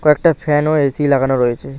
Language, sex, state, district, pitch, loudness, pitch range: Bengali, male, West Bengal, Alipurduar, 145 Hz, -15 LUFS, 135-150 Hz